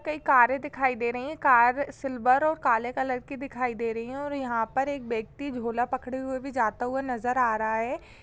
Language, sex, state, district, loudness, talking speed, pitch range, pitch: Hindi, female, Uttar Pradesh, Jyotiba Phule Nagar, -27 LUFS, 225 wpm, 240-275 Hz, 255 Hz